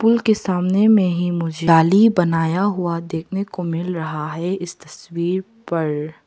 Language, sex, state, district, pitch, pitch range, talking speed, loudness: Hindi, female, Arunachal Pradesh, Papum Pare, 175 Hz, 165-190 Hz, 165 wpm, -19 LUFS